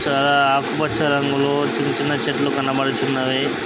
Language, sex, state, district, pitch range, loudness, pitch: Telugu, male, Andhra Pradesh, Krishna, 135-140 Hz, -19 LUFS, 140 Hz